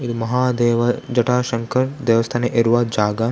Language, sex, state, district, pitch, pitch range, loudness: Kannada, male, Karnataka, Dakshina Kannada, 120 Hz, 115-125 Hz, -19 LUFS